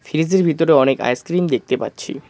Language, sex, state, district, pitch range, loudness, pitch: Bengali, male, West Bengal, Cooch Behar, 135-180 Hz, -17 LUFS, 160 Hz